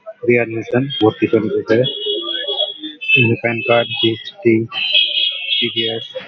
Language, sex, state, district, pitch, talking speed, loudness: Bengali, male, West Bengal, Malda, 120 Hz, 65 wpm, -16 LUFS